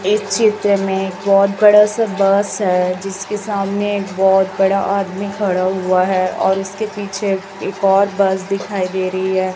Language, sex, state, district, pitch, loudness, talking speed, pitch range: Hindi, male, Chhattisgarh, Raipur, 195 Hz, -16 LUFS, 175 wpm, 190-200 Hz